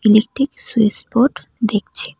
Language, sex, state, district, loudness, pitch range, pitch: Bengali, female, West Bengal, Cooch Behar, -18 LUFS, 215-255 Hz, 225 Hz